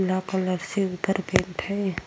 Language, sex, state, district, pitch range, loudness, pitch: Hindi, female, Uttar Pradesh, Jyotiba Phule Nagar, 185-195 Hz, -26 LUFS, 190 Hz